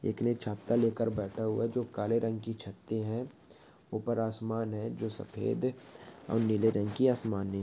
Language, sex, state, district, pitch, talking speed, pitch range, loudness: Hindi, male, Uttarakhand, Tehri Garhwal, 110 Hz, 190 wpm, 110-115 Hz, -33 LUFS